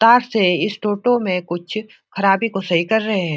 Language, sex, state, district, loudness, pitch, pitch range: Hindi, male, Bihar, Jahanabad, -18 LUFS, 205 Hz, 180-220 Hz